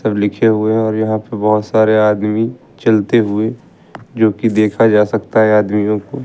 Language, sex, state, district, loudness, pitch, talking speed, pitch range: Hindi, male, Uttar Pradesh, Lucknow, -14 LUFS, 110 Hz, 175 wpm, 105-110 Hz